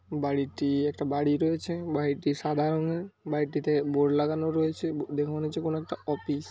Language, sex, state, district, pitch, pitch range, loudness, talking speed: Bengali, male, West Bengal, Paschim Medinipur, 150 Hz, 145-160 Hz, -29 LUFS, 165 wpm